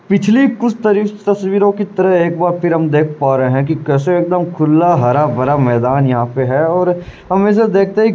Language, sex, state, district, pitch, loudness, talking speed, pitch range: Hindi, male, Uttar Pradesh, Varanasi, 175 Hz, -13 LUFS, 220 wpm, 145-200 Hz